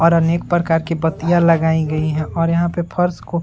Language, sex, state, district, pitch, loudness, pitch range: Hindi, male, Bihar, Saran, 165 Hz, -17 LUFS, 160-170 Hz